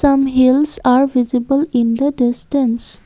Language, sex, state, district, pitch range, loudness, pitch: English, female, Assam, Kamrup Metropolitan, 245-280 Hz, -15 LUFS, 260 Hz